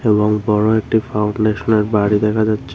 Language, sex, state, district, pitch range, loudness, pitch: Bengali, female, Tripura, Unakoti, 105-110 Hz, -16 LUFS, 105 Hz